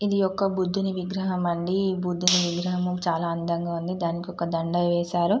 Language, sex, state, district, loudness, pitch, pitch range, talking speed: Telugu, female, Telangana, Karimnagar, -25 LUFS, 180 Hz, 170-185 Hz, 180 wpm